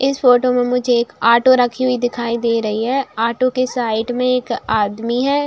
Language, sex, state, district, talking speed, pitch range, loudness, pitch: Hindi, female, Bihar, Saran, 230 wpm, 235-255 Hz, -16 LUFS, 245 Hz